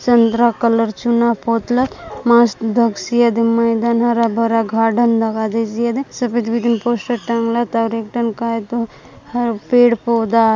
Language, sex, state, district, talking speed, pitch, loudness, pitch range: Halbi, female, Chhattisgarh, Bastar, 135 wpm, 235 Hz, -16 LUFS, 230-240 Hz